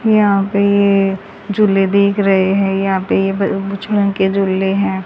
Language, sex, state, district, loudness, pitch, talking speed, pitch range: Hindi, female, Haryana, Rohtak, -14 LUFS, 195 Hz, 120 wpm, 195-200 Hz